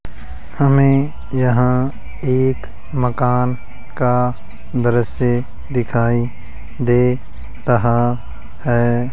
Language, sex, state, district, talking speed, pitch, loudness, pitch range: Hindi, male, Rajasthan, Jaipur, 65 wpm, 125 Hz, -18 LUFS, 120-125 Hz